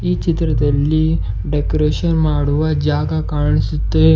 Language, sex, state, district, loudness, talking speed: Kannada, male, Karnataka, Bidar, -17 LUFS, 85 wpm